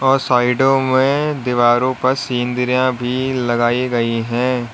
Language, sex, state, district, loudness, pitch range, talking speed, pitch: Hindi, male, Uttar Pradesh, Lalitpur, -16 LUFS, 120-130 Hz, 125 wpm, 125 Hz